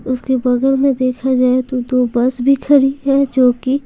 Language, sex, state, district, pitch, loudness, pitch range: Hindi, female, Bihar, Patna, 255 Hz, -15 LUFS, 250-270 Hz